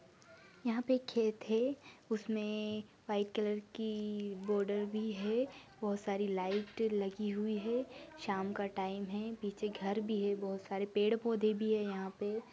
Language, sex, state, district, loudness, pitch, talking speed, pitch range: Hindi, female, Maharashtra, Dhule, -37 LUFS, 210 Hz, 160 wpm, 200-225 Hz